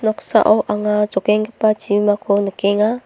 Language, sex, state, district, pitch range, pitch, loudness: Garo, female, Meghalaya, North Garo Hills, 205-215 Hz, 210 Hz, -17 LUFS